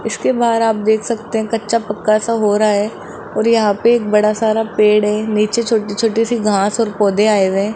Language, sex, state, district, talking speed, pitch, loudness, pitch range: Hindi, male, Rajasthan, Jaipur, 230 wpm, 215 Hz, -15 LUFS, 210-225 Hz